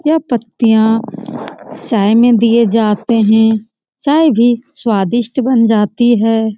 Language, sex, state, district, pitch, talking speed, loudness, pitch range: Hindi, female, Bihar, Lakhisarai, 230 Hz, 135 wpm, -12 LUFS, 220-240 Hz